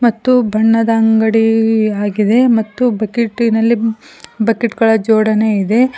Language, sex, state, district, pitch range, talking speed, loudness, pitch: Kannada, female, Karnataka, Koppal, 220-235 Hz, 100 wpm, -13 LUFS, 225 Hz